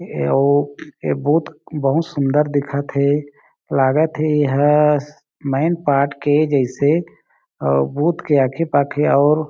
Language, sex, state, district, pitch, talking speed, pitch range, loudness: Chhattisgarhi, male, Chhattisgarh, Jashpur, 145 Hz, 120 wpm, 140-150 Hz, -18 LUFS